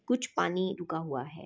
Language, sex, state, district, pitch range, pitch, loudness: Hindi, female, Chhattisgarh, Bastar, 160-190 Hz, 175 Hz, -32 LUFS